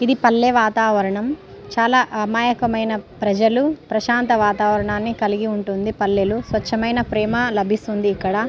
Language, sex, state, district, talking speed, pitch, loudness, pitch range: Telugu, female, Telangana, Nalgonda, 105 wpm, 220 Hz, -19 LUFS, 210-235 Hz